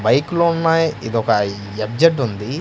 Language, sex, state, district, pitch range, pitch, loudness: Telugu, male, Andhra Pradesh, Manyam, 105-165 Hz, 130 Hz, -18 LUFS